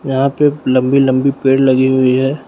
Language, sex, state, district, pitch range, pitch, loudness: Hindi, male, Uttar Pradesh, Lucknow, 130-140 Hz, 135 Hz, -13 LUFS